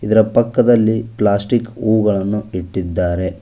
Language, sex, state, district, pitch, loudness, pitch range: Kannada, male, Karnataka, Koppal, 105 Hz, -16 LUFS, 95-115 Hz